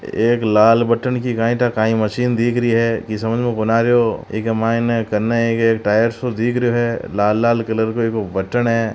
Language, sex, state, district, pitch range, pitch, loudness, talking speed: Marwari, male, Rajasthan, Churu, 110-120 Hz, 115 Hz, -17 LUFS, 210 wpm